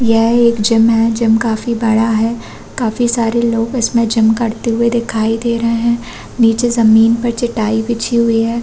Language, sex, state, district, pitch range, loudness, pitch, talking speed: Hindi, female, Chhattisgarh, Bastar, 225-235 Hz, -14 LUFS, 230 Hz, 175 wpm